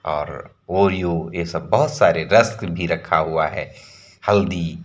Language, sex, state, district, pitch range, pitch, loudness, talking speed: Hindi, male, Uttar Pradesh, Varanasi, 80-95 Hz, 85 Hz, -20 LUFS, 150 wpm